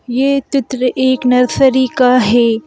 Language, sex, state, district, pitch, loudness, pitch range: Hindi, female, Madhya Pradesh, Bhopal, 255 Hz, -13 LUFS, 250-265 Hz